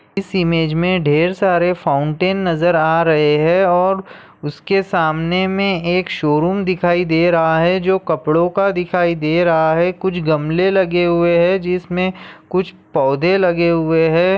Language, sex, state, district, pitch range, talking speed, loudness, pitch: Hindi, male, Maharashtra, Aurangabad, 160-185 Hz, 160 wpm, -16 LUFS, 175 Hz